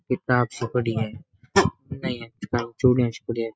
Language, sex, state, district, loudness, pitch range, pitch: Rajasthani, male, Rajasthan, Nagaur, -25 LUFS, 115-125 Hz, 115 Hz